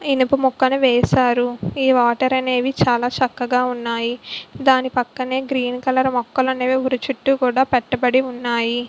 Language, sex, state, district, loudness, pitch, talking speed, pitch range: Telugu, female, Andhra Pradesh, Visakhapatnam, -18 LUFS, 255 Hz, 130 wpm, 245-260 Hz